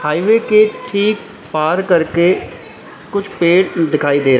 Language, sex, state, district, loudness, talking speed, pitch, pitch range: Hindi, male, Uttar Pradesh, Lalitpur, -15 LUFS, 135 wpm, 180 Hz, 155-205 Hz